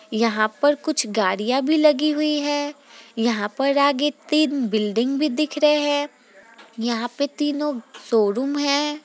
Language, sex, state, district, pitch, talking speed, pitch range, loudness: Hindi, female, Bihar, Gopalganj, 280 Hz, 145 wpm, 230-295 Hz, -21 LUFS